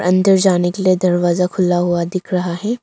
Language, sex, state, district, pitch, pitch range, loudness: Hindi, female, Arunachal Pradesh, Longding, 180 Hz, 175-185 Hz, -16 LUFS